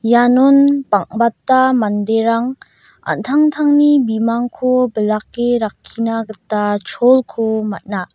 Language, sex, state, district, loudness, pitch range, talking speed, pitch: Garo, female, Meghalaya, West Garo Hills, -15 LUFS, 215-260 Hz, 75 wpm, 235 Hz